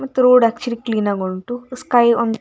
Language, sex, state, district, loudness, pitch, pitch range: Kannada, female, Karnataka, Dakshina Kannada, -16 LUFS, 235 Hz, 225-250 Hz